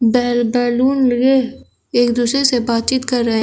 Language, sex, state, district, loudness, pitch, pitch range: Hindi, male, Uttar Pradesh, Shamli, -16 LUFS, 245 Hz, 240-260 Hz